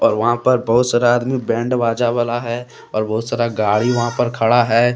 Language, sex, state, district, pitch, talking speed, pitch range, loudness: Hindi, male, Jharkhand, Deoghar, 120 Hz, 205 wpm, 115-120 Hz, -17 LUFS